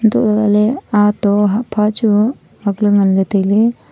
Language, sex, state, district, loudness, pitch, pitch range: Wancho, female, Arunachal Pradesh, Longding, -14 LUFS, 210 Hz, 205-220 Hz